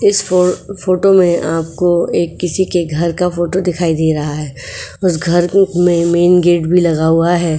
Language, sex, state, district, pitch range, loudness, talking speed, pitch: Hindi, female, Uttar Pradesh, Etah, 165-180 Hz, -13 LUFS, 200 wpm, 175 Hz